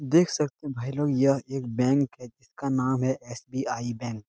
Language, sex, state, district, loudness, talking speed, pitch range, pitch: Hindi, male, Bihar, Jahanabad, -27 LUFS, 210 wpm, 125-140 Hz, 130 Hz